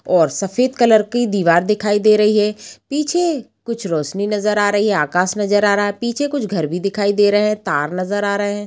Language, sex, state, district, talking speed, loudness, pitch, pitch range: Hindi, female, Bihar, Sitamarhi, 240 wpm, -17 LUFS, 205 Hz, 195-215 Hz